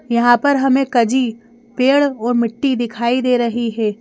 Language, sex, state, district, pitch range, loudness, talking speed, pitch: Hindi, female, Madhya Pradesh, Bhopal, 235-260 Hz, -16 LUFS, 165 wpm, 240 Hz